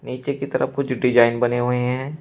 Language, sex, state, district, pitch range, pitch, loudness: Hindi, male, Uttar Pradesh, Shamli, 125-135 Hz, 125 Hz, -20 LUFS